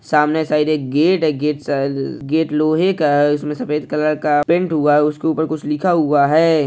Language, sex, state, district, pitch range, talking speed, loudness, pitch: Hindi, male, Maharashtra, Pune, 150-160 Hz, 215 wpm, -17 LUFS, 150 Hz